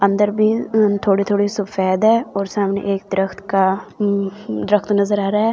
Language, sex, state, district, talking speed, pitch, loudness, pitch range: Hindi, female, Delhi, New Delhi, 185 wpm, 200 Hz, -18 LUFS, 195-210 Hz